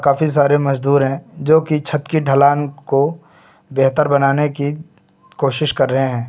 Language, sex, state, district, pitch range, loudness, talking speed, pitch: Hindi, male, Uttar Pradesh, Lucknow, 135-155 Hz, -16 LUFS, 160 wpm, 145 Hz